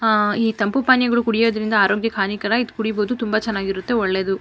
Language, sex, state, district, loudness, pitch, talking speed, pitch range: Kannada, female, Karnataka, Mysore, -19 LUFS, 220 Hz, 165 wpm, 205-230 Hz